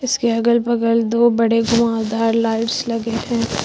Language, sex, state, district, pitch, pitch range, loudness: Hindi, female, Uttar Pradesh, Lucknow, 230 Hz, 230-235 Hz, -17 LUFS